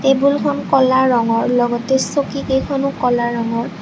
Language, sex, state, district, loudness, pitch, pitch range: Assamese, female, Assam, Kamrup Metropolitan, -16 LUFS, 265 Hz, 240-275 Hz